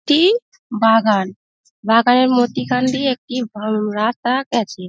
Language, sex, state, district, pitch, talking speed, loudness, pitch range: Bengali, female, West Bengal, Dakshin Dinajpur, 240 Hz, 120 wpm, -17 LUFS, 215-260 Hz